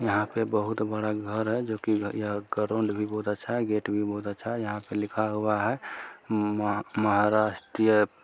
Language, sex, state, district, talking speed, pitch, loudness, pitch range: Hindi, male, Bihar, Araria, 190 wpm, 105 Hz, -28 LUFS, 105-110 Hz